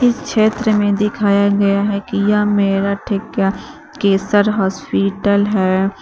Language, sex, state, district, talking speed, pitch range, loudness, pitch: Hindi, female, Uttar Pradesh, Shamli, 130 wpm, 200-210 Hz, -16 LUFS, 200 Hz